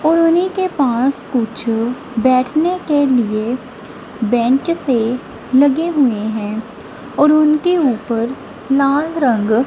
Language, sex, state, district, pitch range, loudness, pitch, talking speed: Hindi, female, Punjab, Kapurthala, 230-300 Hz, -16 LUFS, 255 Hz, 105 wpm